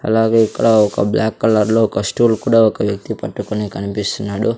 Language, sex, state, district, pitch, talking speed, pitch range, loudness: Telugu, male, Andhra Pradesh, Sri Satya Sai, 110 Hz, 170 wpm, 105-115 Hz, -16 LUFS